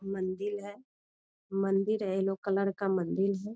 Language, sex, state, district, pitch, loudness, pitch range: Hindi, female, Bihar, Jamui, 195 Hz, -32 LUFS, 195-205 Hz